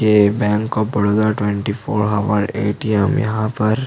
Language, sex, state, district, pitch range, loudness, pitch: Hindi, male, Chhattisgarh, Jashpur, 105-110 Hz, -18 LUFS, 105 Hz